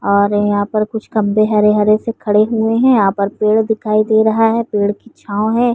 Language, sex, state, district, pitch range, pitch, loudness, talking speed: Hindi, female, Uttar Pradesh, Varanasi, 205-225 Hz, 215 Hz, -14 LUFS, 220 wpm